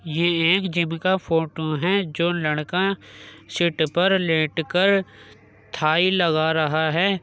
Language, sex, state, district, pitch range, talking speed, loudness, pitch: Hindi, male, Uttar Pradesh, Jyotiba Phule Nagar, 155-180 Hz, 135 wpm, -21 LUFS, 165 Hz